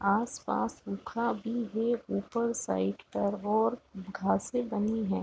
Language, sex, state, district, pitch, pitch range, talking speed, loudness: Hindi, female, Chhattisgarh, Raigarh, 215 Hz, 200-235 Hz, 115 wpm, -32 LUFS